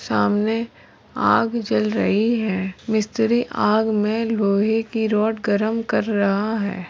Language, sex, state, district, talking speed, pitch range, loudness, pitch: Hindi, female, Chhattisgarh, Rajnandgaon, 130 wpm, 205-225 Hz, -20 LUFS, 220 Hz